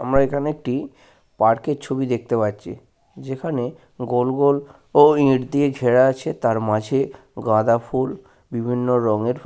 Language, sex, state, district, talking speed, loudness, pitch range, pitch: Bengali, male, West Bengal, Paschim Medinipur, 125 wpm, -20 LUFS, 115-135 Hz, 125 Hz